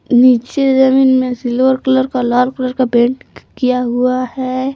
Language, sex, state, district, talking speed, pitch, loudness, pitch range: Hindi, female, Jharkhand, Palamu, 165 wpm, 255 Hz, -14 LUFS, 250-260 Hz